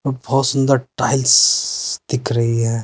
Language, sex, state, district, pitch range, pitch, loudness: Hindi, male, Uttar Pradesh, Saharanpur, 115-135 Hz, 130 Hz, -16 LUFS